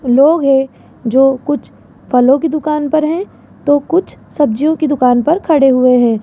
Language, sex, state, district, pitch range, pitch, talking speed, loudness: Hindi, female, Rajasthan, Jaipur, 260-310 Hz, 285 Hz, 175 wpm, -13 LUFS